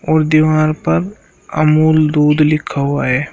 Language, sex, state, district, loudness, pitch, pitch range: Hindi, male, Uttar Pradesh, Shamli, -13 LUFS, 155 Hz, 145-155 Hz